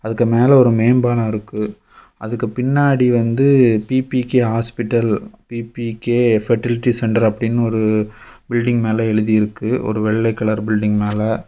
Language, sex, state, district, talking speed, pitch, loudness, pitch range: Tamil, male, Tamil Nadu, Kanyakumari, 125 wpm, 115 Hz, -17 LUFS, 110-120 Hz